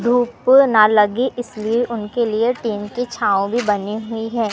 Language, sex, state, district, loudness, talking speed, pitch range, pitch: Hindi, male, Madhya Pradesh, Katni, -18 LUFS, 175 wpm, 215-245 Hz, 230 Hz